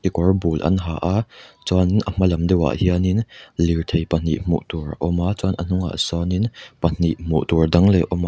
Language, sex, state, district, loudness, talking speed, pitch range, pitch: Mizo, male, Mizoram, Aizawl, -20 LUFS, 240 wpm, 85-95 Hz, 85 Hz